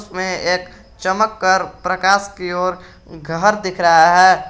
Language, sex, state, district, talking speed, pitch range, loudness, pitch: Hindi, male, Jharkhand, Garhwa, 135 wpm, 180-190 Hz, -16 LUFS, 185 Hz